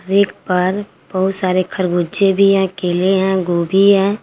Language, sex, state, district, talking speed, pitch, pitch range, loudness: Hindi, female, Jharkhand, Garhwa, 155 wpm, 190 Hz, 180-195 Hz, -15 LUFS